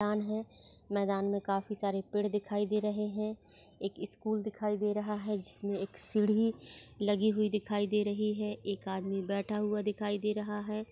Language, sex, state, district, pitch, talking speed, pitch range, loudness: Hindi, female, Maharashtra, Chandrapur, 210 Hz, 185 wpm, 200-210 Hz, -34 LUFS